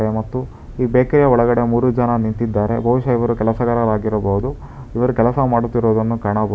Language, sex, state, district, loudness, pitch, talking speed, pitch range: Kannada, male, Karnataka, Bangalore, -17 LUFS, 120 Hz, 135 wpm, 110-125 Hz